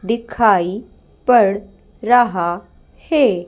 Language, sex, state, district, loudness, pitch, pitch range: Hindi, female, Madhya Pradesh, Bhopal, -16 LUFS, 215 Hz, 190-240 Hz